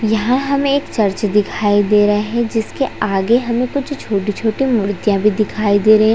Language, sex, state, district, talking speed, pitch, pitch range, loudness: Hindi, female, Chhattisgarh, Raigarh, 185 wpm, 215 Hz, 205-240 Hz, -16 LUFS